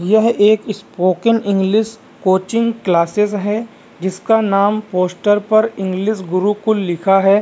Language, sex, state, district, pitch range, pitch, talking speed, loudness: Hindi, male, Bihar, Vaishali, 190-215 Hz, 205 Hz, 120 wpm, -16 LUFS